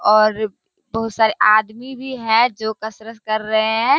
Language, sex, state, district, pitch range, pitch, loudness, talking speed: Hindi, female, Bihar, Kishanganj, 215-225 Hz, 220 Hz, -18 LUFS, 165 wpm